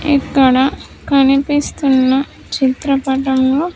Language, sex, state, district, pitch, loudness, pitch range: Telugu, female, Andhra Pradesh, Sri Satya Sai, 275 Hz, -14 LUFS, 265-285 Hz